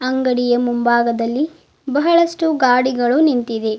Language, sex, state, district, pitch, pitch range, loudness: Kannada, female, Karnataka, Bidar, 255 Hz, 240-295 Hz, -16 LUFS